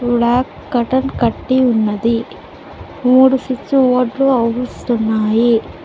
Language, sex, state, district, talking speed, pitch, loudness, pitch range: Telugu, female, Telangana, Mahabubabad, 80 wpm, 245 Hz, -15 LUFS, 230-260 Hz